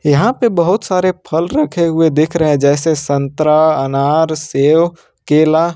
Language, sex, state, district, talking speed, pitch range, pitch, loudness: Hindi, male, Jharkhand, Ranchi, 165 wpm, 150-170 Hz, 155 Hz, -13 LUFS